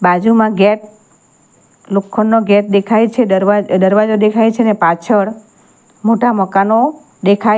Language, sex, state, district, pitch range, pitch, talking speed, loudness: Gujarati, female, Gujarat, Valsad, 200-225 Hz, 215 Hz, 125 wpm, -12 LUFS